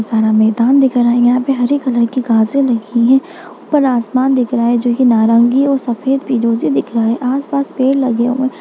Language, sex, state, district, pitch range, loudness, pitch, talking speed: Hindi, female, Bihar, Bhagalpur, 235-270 Hz, -13 LUFS, 250 Hz, 225 wpm